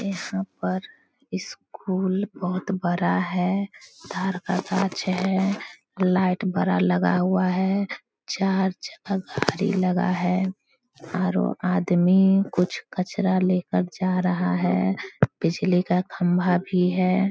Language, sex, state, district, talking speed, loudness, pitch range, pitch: Hindi, female, Bihar, Samastipur, 120 wpm, -24 LUFS, 180-195 Hz, 185 Hz